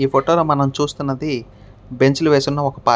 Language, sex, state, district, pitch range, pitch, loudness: Telugu, male, Andhra Pradesh, Krishna, 130-145 Hz, 135 Hz, -18 LUFS